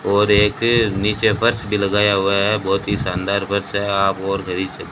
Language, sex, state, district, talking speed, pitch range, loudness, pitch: Hindi, male, Rajasthan, Bikaner, 220 wpm, 100-105 Hz, -18 LUFS, 100 Hz